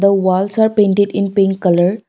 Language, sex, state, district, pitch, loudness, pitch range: English, female, Assam, Kamrup Metropolitan, 200 Hz, -14 LUFS, 190-200 Hz